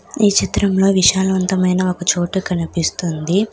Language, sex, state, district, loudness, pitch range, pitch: Telugu, female, Telangana, Hyderabad, -16 LUFS, 175-190 Hz, 185 Hz